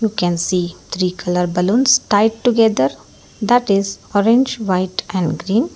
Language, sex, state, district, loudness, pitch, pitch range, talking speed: English, female, Karnataka, Bangalore, -17 LUFS, 195 Hz, 180-225 Hz, 145 wpm